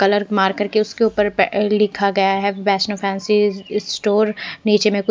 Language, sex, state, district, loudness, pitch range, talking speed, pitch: Hindi, female, Bihar, West Champaran, -18 LUFS, 200-210 Hz, 175 wpm, 205 Hz